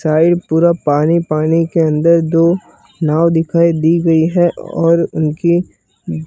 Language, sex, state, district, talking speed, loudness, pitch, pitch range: Hindi, male, Gujarat, Gandhinagar, 135 wpm, -13 LUFS, 165 Hz, 160-170 Hz